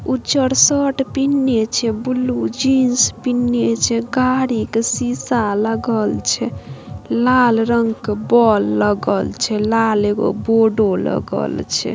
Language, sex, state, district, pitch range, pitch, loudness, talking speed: Maithili, female, Bihar, Samastipur, 220-255 Hz, 235 Hz, -17 LUFS, 125 wpm